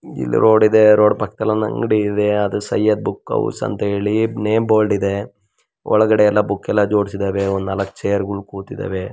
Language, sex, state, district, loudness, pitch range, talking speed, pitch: Kannada, female, Karnataka, Mysore, -17 LUFS, 100-110 Hz, 160 wpm, 105 Hz